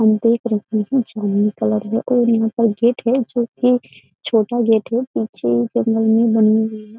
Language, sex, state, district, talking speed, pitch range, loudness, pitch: Hindi, female, Uttar Pradesh, Jyotiba Phule Nagar, 195 wpm, 215-235 Hz, -18 LUFS, 225 Hz